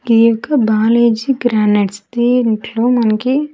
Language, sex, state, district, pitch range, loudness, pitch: Telugu, female, Andhra Pradesh, Sri Satya Sai, 220-245 Hz, -14 LUFS, 230 Hz